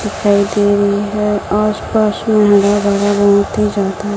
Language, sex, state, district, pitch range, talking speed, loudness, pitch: Hindi, female, Chhattisgarh, Raipur, 200-210 Hz, 175 wpm, -13 LUFS, 205 Hz